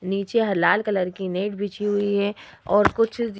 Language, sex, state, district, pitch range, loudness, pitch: Hindi, female, Uttar Pradesh, Hamirpur, 195-210 Hz, -23 LUFS, 205 Hz